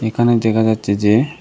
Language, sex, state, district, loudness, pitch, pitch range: Bengali, male, Tripura, Dhalai, -15 LUFS, 110 Hz, 110-120 Hz